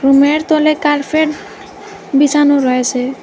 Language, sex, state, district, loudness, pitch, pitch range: Bengali, female, Assam, Hailakandi, -13 LUFS, 290 Hz, 275-310 Hz